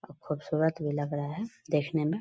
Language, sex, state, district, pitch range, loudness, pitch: Hindi, female, Bihar, Purnia, 145-165 Hz, -31 LUFS, 155 Hz